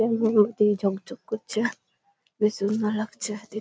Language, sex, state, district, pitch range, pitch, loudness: Bengali, female, West Bengal, Malda, 210-230 Hz, 215 Hz, -25 LUFS